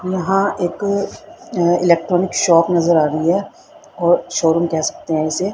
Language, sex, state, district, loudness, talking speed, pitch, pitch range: Hindi, female, Haryana, Rohtak, -17 LUFS, 160 wpm, 175 Hz, 165-190 Hz